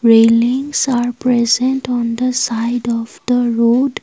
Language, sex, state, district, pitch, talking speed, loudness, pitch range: English, female, Assam, Kamrup Metropolitan, 240 Hz, 135 wpm, -15 LUFS, 235-250 Hz